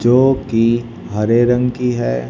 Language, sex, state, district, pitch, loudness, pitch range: Hindi, male, Haryana, Rohtak, 120 Hz, -16 LUFS, 115-125 Hz